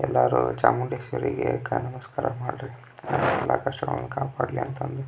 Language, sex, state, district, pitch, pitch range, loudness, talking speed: Kannada, male, Karnataka, Belgaum, 130 Hz, 120-135 Hz, -26 LUFS, 95 wpm